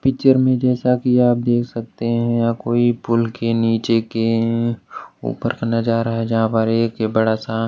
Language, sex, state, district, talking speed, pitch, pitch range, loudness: Hindi, male, Maharashtra, Washim, 180 wpm, 115 Hz, 115-120 Hz, -18 LUFS